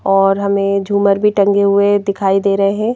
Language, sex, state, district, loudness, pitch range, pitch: Hindi, female, Madhya Pradesh, Bhopal, -14 LUFS, 195-200 Hz, 200 Hz